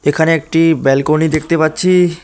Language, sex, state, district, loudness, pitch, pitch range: Bengali, male, West Bengal, Alipurduar, -13 LUFS, 160 Hz, 155-170 Hz